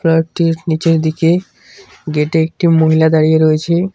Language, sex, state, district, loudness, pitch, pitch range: Bengali, male, West Bengal, Cooch Behar, -13 LUFS, 160 Hz, 160-165 Hz